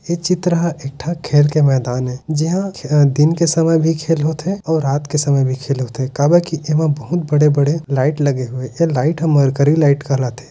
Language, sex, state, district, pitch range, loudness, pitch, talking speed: Hindi, male, Chhattisgarh, Raigarh, 140-165 Hz, -16 LUFS, 150 Hz, 225 wpm